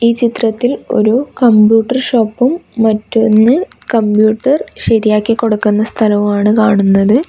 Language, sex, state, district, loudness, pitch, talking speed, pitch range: Malayalam, female, Kerala, Kasaragod, -12 LUFS, 225 Hz, 90 wpm, 215-240 Hz